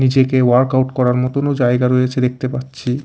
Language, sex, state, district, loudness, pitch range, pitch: Bengali, male, Odisha, Khordha, -16 LUFS, 125-130 Hz, 130 Hz